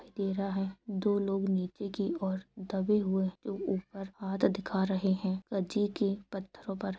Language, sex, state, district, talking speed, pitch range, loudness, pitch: Hindi, female, Jharkhand, Sahebganj, 170 wpm, 190-200 Hz, -33 LUFS, 195 Hz